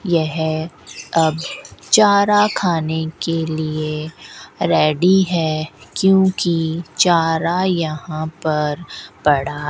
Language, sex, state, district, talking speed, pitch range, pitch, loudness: Hindi, female, Rajasthan, Bikaner, 85 wpm, 155-180 Hz, 165 Hz, -18 LUFS